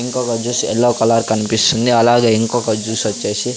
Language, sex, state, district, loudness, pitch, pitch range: Telugu, male, Andhra Pradesh, Sri Satya Sai, -15 LUFS, 115 Hz, 110-120 Hz